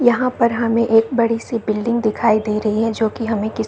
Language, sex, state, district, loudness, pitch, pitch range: Hindi, female, Bihar, Saharsa, -18 LUFS, 225 Hz, 215-235 Hz